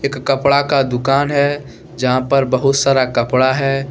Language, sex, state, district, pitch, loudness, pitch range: Hindi, male, Jharkhand, Deoghar, 135 Hz, -15 LUFS, 130-140 Hz